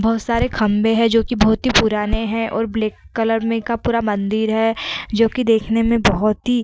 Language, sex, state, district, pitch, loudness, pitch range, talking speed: Hindi, female, Uttar Pradesh, Varanasi, 225 Hz, -18 LUFS, 215-230 Hz, 210 wpm